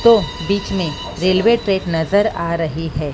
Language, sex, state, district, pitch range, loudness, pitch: Hindi, female, Maharashtra, Mumbai Suburban, 165-200 Hz, -18 LUFS, 185 Hz